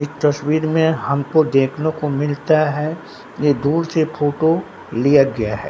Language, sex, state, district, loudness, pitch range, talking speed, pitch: Hindi, male, Bihar, Katihar, -18 LUFS, 140-155 Hz, 160 wpm, 150 Hz